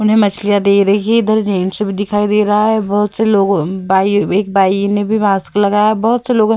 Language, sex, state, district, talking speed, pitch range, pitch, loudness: Hindi, female, Bihar, Vaishali, 210 wpm, 200-215 Hz, 205 Hz, -13 LUFS